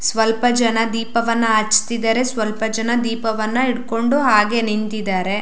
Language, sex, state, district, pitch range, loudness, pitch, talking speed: Kannada, female, Karnataka, Shimoga, 215-235 Hz, -18 LUFS, 225 Hz, 110 wpm